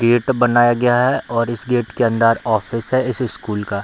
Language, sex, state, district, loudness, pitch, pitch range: Hindi, male, Bihar, Darbhanga, -17 LUFS, 120 Hz, 115-125 Hz